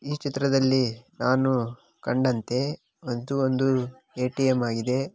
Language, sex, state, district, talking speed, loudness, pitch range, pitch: Kannada, male, Karnataka, Raichur, 95 wpm, -25 LUFS, 125-135 Hz, 130 Hz